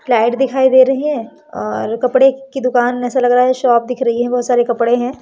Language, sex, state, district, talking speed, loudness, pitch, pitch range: Hindi, female, Madhya Pradesh, Umaria, 230 wpm, -14 LUFS, 250 Hz, 240-260 Hz